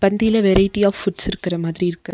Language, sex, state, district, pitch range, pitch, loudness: Tamil, female, Tamil Nadu, Nilgiris, 180-205 Hz, 195 Hz, -18 LUFS